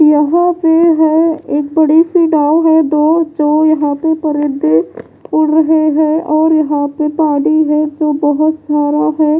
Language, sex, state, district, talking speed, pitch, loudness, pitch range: Hindi, female, Punjab, Pathankot, 145 wpm, 310 Hz, -12 LUFS, 300-320 Hz